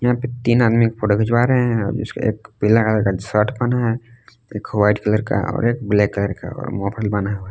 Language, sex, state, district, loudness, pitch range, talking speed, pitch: Hindi, male, Jharkhand, Palamu, -19 LUFS, 105-120 Hz, 230 wpm, 110 Hz